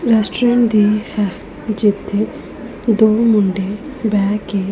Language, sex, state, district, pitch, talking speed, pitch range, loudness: Punjabi, female, Punjab, Pathankot, 215 Hz, 100 wpm, 205-225 Hz, -16 LUFS